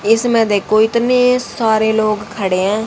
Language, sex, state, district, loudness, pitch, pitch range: Hindi, female, Haryana, Jhajjar, -14 LUFS, 220 Hz, 205-235 Hz